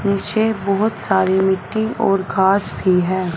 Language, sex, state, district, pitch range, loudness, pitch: Hindi, female, Punjab, Fazilka, 190-215 Hz, -18 LUFS, 195 Hz